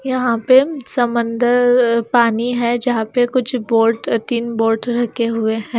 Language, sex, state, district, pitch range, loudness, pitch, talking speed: Hindi, female, Himachal Pradesh, Shimla, 230-245 Hz, -16 LUFS, 240 Hz, 145 wpm